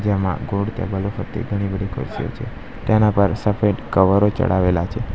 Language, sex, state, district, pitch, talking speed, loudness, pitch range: Gujarati, male, Gujarat, Valsad, 100 Hz, 165 wpm, -20 LUFS, 95-105 Hz